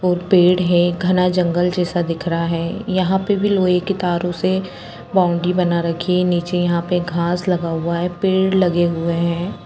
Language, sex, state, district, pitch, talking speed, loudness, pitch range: Hindi, female, Jharkhand, Jamtara, 180 Hz, 200 wpm, -18 LUFS, 170-185 Hz